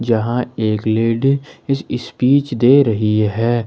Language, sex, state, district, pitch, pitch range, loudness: Hindi, male, Jharkhand, Ranchi, 120 Hz, 110-135 Hz, -16 LUFS